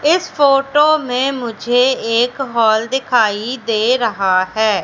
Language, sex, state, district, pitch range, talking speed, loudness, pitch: Hindi, female, Madhya Pradesh, Katni, 220-270 Hz, 125 wpm, -15 LUFS, 245 Hz